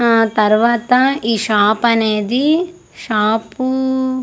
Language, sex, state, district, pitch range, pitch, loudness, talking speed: Telugu, female, Andhra Pradesh, Manyam, 220-260 Hz, 235 Hz, -15 LUFS, 85 wpm